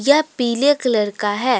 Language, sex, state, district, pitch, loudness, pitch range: Hindi, female, Jharkhand, Deoghar, 250 Hz, -18 LUFS, 210-285 Hz